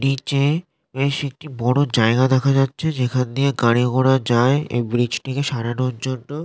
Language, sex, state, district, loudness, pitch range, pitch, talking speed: Bengali, male, West Bengal, North 24 Parganas, -19 LUFS, 125-140 Hz, 130 Hz, 160 wpm